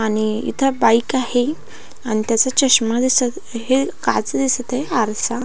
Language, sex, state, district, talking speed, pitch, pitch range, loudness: Marathi, female, Maharashtra, Pune, 155 wpm, 245 Hz, 225-260 Hz, -18 LUFS